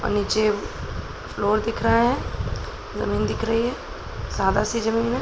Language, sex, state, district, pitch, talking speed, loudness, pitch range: Hindi, male, Bihar, Araria, 225 Hz, 160 wpm, -24 LUFS, 210-230 Hz